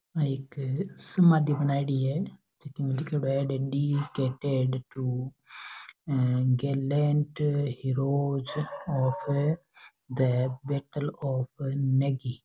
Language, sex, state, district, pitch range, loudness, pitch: Rajasthani, male, Rajasthan, Churu, 130-145 Hz, -28 LUFS, 140 Hz